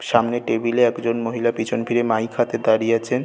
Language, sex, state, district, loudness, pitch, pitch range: Bengali, male, West Bengal, North 24 Parganas, -20 LUFS, 115 Hz, 115-120 Hz